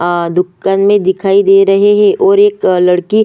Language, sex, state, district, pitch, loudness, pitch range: Hindi, female, Chhattisgarh, Sukma, 195 Hz, -10 LUFS, 180-210 Hz